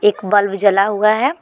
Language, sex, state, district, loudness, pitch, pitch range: Hindi, female, Jharkhand, Deoghar, -15 LUFS, 205 Hz, 200-215 Hz